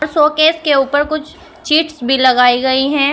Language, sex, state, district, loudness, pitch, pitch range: Hindi, female, Uttar Pradesh, Shamli, -13 LUFS, 295 Hz, 265-310 Hz